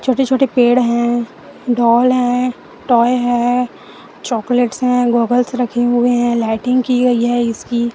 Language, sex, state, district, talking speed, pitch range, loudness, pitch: Hindi, female, Chhattisgarh, Raipur, 145 wpm, 240-250 Hz, -15 LUFS, 245 Hz